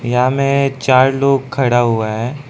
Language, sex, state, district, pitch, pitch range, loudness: Hindi, male, Arunachal Pradesh, Lower Dibang Valley, 130 Hz, 120-135 Hz, -14 LUFS